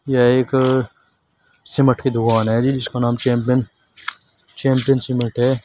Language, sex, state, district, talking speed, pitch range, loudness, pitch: Hindi, male, Uttar Pradesh, Shamli, 150 wpm, 120-130 Hz, -18 LUFS, 125 Hz